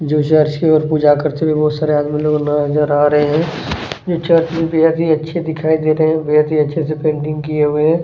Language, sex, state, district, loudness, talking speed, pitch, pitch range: Hindi, male, Chhattisgarh, Kabirdham, -15 LUFS, 230 wpm, 155 Hz, 150-160 Hz